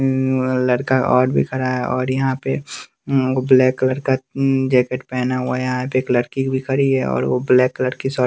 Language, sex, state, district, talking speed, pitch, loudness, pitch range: Hindi, male, Bihar, West Champaran, 210 wpm, 130 Hz, -18 LUFS, 125-130 Hz